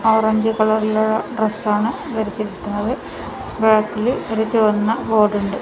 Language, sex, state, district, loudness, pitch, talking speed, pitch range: Malayalam, female, Kerala, Kasaragod, -19 LUFS, 220 Hz, 95 wpm, 210-225 Hz